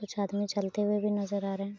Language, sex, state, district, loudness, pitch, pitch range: Hindi, female, Bihar, Araria, -31 LUFS, 205 Hz, 200-210 Hz